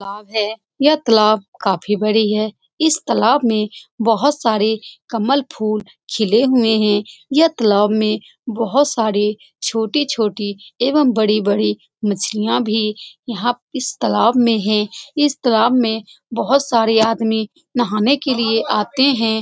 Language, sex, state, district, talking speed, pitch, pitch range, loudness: Hindi, female, Bihar, Saran, 135 wpm, 225 Hz, 215-250 Hz, -17 LUFS